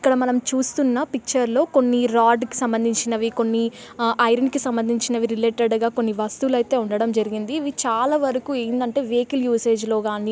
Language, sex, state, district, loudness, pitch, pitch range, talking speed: Telugu, female, Telangana, Nalgonda, -21 LUFS, 240 Hz, 230-260 Hz, 170 wpm